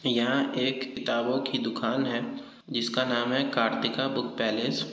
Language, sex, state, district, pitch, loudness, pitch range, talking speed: Hindi, male, Uttar Pradesh, Jyotiba Phule Nagar, 130 Hz, -28 LUFS, 120-135 Hz, 160 wpm